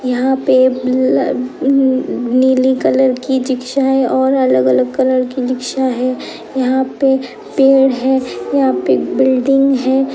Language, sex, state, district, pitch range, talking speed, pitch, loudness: Hindi, female, Uttar Pradesh, Etah, 255-265 Hz, 130 wpm, 260 Hz, -14 LUFS